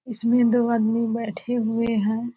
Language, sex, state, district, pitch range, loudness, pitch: Hindi, female, Bihar, Purnia, 225-240 Hz, -22 LUFS, 230 Hz